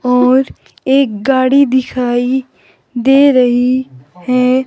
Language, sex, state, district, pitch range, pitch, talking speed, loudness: Hindi, female, Himachal Pradesh, Shimla, 250-265 Hz, 255 Hz, 90 wpm, -12 LUFS